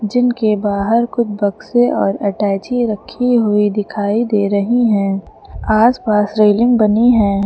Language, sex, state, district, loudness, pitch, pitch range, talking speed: Hindi, male, Uttar Pradesh, Lucknow, -15 LUFS, 215 Hz, 205-235 Hz, 135 wpm